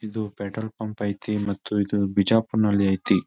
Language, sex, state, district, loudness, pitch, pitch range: Kannada, male, Karnataka, Bijapur, -24 LUFS, 105 Hz, 100-110 Hz